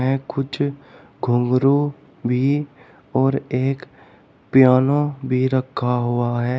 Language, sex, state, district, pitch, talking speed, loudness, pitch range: Hindi, male, Uttar Pradesh, Shamli, 130 Hz, 90 wpm, -20 LUFS, 125-140 Hz